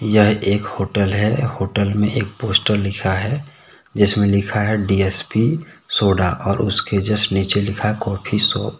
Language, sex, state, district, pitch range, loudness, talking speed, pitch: Hindi, male, Jharkhand, Deoghar, 100-110 Hz, -18 LUFS, 150 wpm, 105 Hz